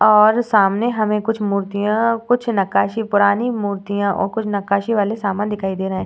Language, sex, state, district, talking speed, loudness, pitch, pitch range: Hindi, female, Uttar Pradesh, Varanasi, 180 wpm, -18 LUFS, 210 Hz, 200-225 Hz